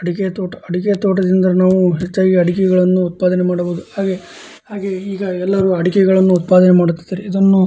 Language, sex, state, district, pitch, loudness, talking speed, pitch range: Kannada, male, Karnataka, Dharwad, 185 Hz, -15 LUFS, 150 wpm, 180-190 Hz